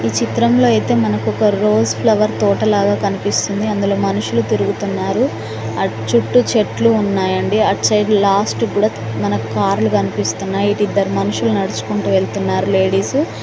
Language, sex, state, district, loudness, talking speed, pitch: Telugu, female, Telangana, Mahabubabad, -16 LUFS, 135 wpm, 195 Hz